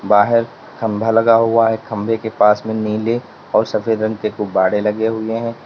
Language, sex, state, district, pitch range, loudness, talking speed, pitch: Hindi, male, Uttar Pradesh, Lalitpur, 105-115 Hz, -17 LUFS, 190 wpm, 110 Hz